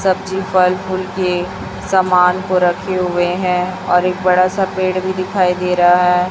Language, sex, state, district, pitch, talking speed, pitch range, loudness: Hindi, female, Chhattisgarh, Raipur, 185 Hz, 180 wpm, 180-185 Hz, -15 LUFS